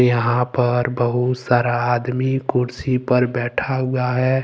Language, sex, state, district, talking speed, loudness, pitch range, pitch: Hindi, male, Jharkhand, Ranchi, 135 wpm, -19 LUFS, 120-130 Hz, 125 Hz